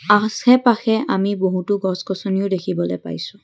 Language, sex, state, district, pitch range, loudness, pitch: Assamese, female, Assam, Kamrup Metropolitan, 185-215 Hz, -19 LUFS, 195 Hz